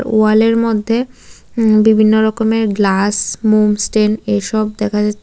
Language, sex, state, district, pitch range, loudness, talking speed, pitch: Bengali, female, Tripura, West Tripura, 210-220 Hz, -14 LUFS, 125 wpm, 215 Hz